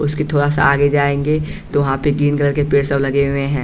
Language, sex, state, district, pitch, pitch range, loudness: Hindi, male, Bihar, West Champaran, 145 Hz, 140-145 Hz, -16 LUFS